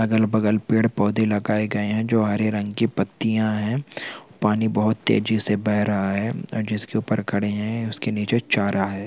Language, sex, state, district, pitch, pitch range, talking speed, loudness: Hindi, male, Chhattisgarh, Sukma, 105 Hz, 105-110 Hz, 185 wpm, -22 LUFS